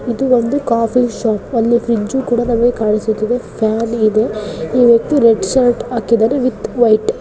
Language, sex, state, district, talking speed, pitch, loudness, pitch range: Kannada, female, Karnataka, Dakshina Kannada, 135 wpm, 235 Hz, -14 LUFS, 220-245 Hz